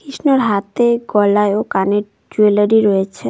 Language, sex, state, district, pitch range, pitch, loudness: Bengali, female, West Bengal, Cooch Behar, 205-235 Hz, 210 Hz, -15 LUFS